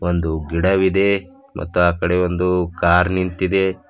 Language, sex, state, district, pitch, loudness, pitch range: Kannada, male, Karnataka, Bidar, 90 Hz, -18 LUFS, 85-95 Hz